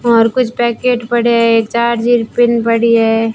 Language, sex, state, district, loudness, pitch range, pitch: Hindi, female, Rajasthan, Bikaner, -12 LUFS, 230-240 Hz, 235 Hz